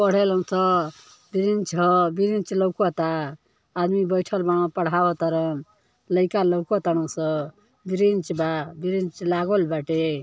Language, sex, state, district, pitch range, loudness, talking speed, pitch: Bhojpuri, female, Uttar Pradesh, Ghazipur, 160-195 Hz, -23 LUFS, 105 wpm, 180 Hz